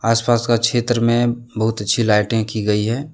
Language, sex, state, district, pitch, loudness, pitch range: Hindi, male, Jharkhand, Deoghar, 115 Hz, -18 LUFS, 110-120 Hz